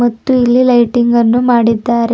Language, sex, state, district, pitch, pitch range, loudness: Kannada, female, Karnataka, Bidar, 240 Hz, 235-245 Hz, -11 LUFS